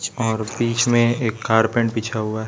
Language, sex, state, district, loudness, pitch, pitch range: Hindi, male, Chhattisgarh, Raipur, -20 LUFS, 115 Hz, 110-120 Hz